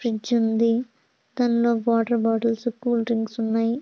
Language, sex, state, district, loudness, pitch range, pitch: Telugu, female, Andhra Pradesh, Visakhapatnam, -23 LUFS, 225-235 Hz, 230 Hz